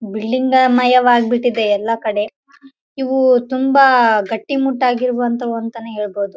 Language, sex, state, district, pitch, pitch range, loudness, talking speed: Kannada, female, Karnataka, Raichur, 245 Hz, 225-260 Hz, -15 LUFS, 115 wpm